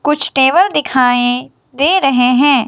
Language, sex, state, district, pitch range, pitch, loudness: Hindi, male, Himachal Pradesh, Shimla, 250-295 Hz, 270 Hz, -12 LUFS